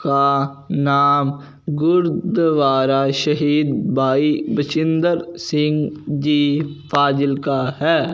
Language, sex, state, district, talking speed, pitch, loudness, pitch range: Hindi, male, Punjab, Fazilka, 80 wpm, 145 Hz, -18 LUFS, 140-160 Hz